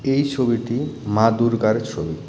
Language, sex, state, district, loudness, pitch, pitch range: Bengali, male, West Bengal, Cooch Behar, -20 LUFS, 115 Hz, 110-135 Hz